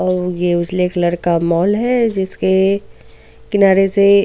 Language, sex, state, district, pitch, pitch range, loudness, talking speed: Hindi, female, Goa, North and South Goa, 190 Hz, 175-200 Hz, -15 LUFS, 140 wpm